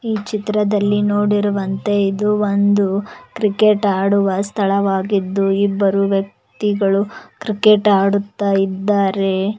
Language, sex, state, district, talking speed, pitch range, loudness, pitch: Kannada, female, Karnataka, Koppal, 80 wpm, 195-210 Hz, -17 LUFS, 200 Hz